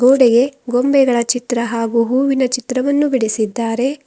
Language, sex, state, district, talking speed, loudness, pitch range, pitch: Kannada, female, Karnataka, Bidar, 105 wpm, -16 LUFS, 235-265 Hz, 250 Hz